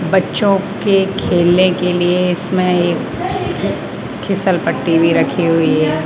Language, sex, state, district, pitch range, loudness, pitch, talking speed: Hindi, male, Rajasthan, Jaipur, 170-190 Hz, -15 LUFS, 180 Hz, 130 wpm